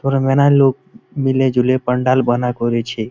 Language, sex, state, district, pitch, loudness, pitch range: Bengali, male, West Bengal, Malda, 130 Hz, -16 LUFS, 125-135 Hz